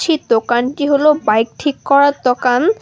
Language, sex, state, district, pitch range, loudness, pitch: Bengali, female, West Bengal, Alipurduar, 245-295 Hz, -14 LUFS, 280 Hz